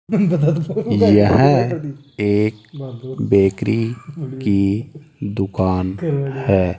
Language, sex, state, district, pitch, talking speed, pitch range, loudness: Hindi, male, Rajasthan, Jaipur, 125 Hz, 55 wpm, 100-145 Hz, -18 LUFS